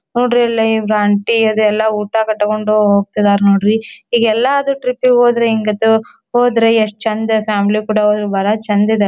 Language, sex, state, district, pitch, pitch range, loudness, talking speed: Kannada, female, Karnataka, Dharwad, 220 Hz, 210-230 Hz, -14 LUFS, 160 wpm